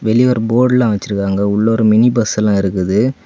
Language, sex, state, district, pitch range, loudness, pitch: Tamil, male, Tamil Nadu, Kanyakumari, 100-120 Hz, -14 LUFS, 110 Hz